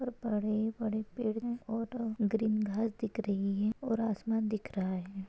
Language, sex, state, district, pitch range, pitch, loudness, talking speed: Hindi, female, Maharashtra, Nagpur, 210-225 Hz, 220 Hz, -34 LUFS, 180 wpm